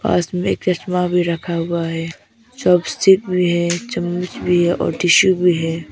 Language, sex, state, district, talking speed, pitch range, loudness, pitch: Hindi, female, Arunachal Pradesh, Papum Pare, 180 wpm, 170-180 Hz, -17 LUFS, 175 Hz